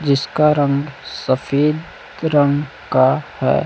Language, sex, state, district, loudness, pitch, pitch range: Hindi, male, Chhattisgarh, Raipur, -17 LUFS, 145 Hz, 135-150 Hz